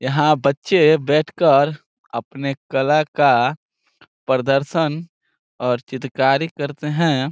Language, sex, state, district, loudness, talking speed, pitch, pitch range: Hindi, male, Bihar, Saran, -18 LUFS, 100 wpm, 140 Hz, 135-155 Hz